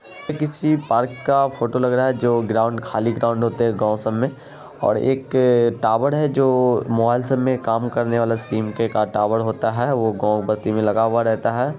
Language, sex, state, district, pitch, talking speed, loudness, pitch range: Hindi, male, Bihar, Saharsa, 120 Hz, 310 wpm, -20 LUFS, 115-130 Hz